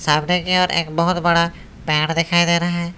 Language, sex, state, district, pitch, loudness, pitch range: Hindi, male, West Bengal, Alipurduar, 170 Hz, -18 LUFS, 165-175 Hz